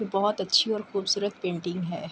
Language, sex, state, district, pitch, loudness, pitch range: Urdu, female, Andhra Pradesh, Anantapur, 195 Hz, -27 LUFS, 180-205 Hz